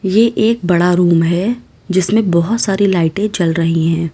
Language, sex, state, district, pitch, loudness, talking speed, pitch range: Hindi, female, Uttar Pradesh, Lalitpur, 185 Hz, -14 LUFS, 175 wpm, 170-210 Hz